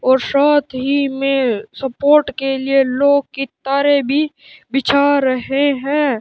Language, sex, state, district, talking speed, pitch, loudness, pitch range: Hindi, male, Rajasthan, Bikaner, 135 wpm, 275 Hz, -16 LUFS, 265-285 Hz